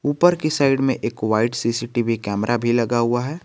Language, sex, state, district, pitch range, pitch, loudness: Hindi, male, Jharkhand, Garhwa, 115-135 Hz, 120 Hz, -20 LUFS